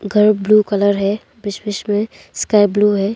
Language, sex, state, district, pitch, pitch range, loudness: Hindi, female, Arunachal Pradesh, Longding, 205 Hz, 200-210 Hz, -16 LUFS